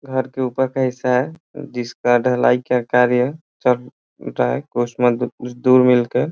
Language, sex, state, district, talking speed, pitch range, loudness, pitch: Hindi, male, Bihar, Gopalganj, 140 wpm, 125-130 Hz, -18 LUFS, 125 Hz